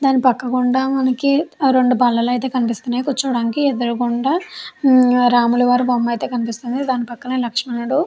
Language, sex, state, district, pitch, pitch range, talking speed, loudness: Telugu, female, Andhra Pradesh, Chittoor, 250 Hz, 240-265 Hz, 150 wpm, -17 LUFS